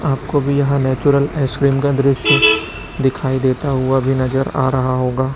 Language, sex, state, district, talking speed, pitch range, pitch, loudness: Hindi, male, Chhattisgarh, Raipur, 170 wpm, 130-140 Hz, 135 Hz, -16 LUFS